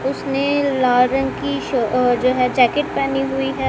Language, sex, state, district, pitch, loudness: Hindi, female, Punjab, Kapurthala, 245 Hz, -18 LUFS